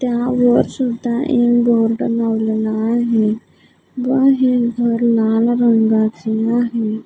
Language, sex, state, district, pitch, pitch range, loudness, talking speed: Marathi, female, Maharashtra, Gondia, 235 Hz, 220-245 Hz, -16 LUFS, 100 wpm